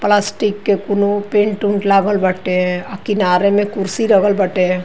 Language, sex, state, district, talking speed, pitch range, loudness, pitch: Bhojpuri, female, Uttar Pradesh, Ghazipur, 160 wpm, 185-205 Hz, -16 LUFS, 200 Hz